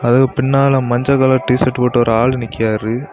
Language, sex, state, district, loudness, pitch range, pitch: Tamil, male, Tamil Nadu, Kanyakumari, -14 LUFS, 120-130 Hz, 125 Hz